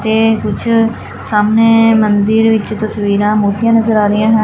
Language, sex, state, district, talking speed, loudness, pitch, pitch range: Punjabi, female, Punjab, Fazilka, 150 wpm, -12 LUFS, 220 Hz, 210-225 Hz